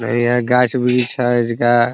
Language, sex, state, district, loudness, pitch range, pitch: Hindi, male, Bihar, Muzaffarpur, -16 LUFS, 120-125 Hz, 120 Hz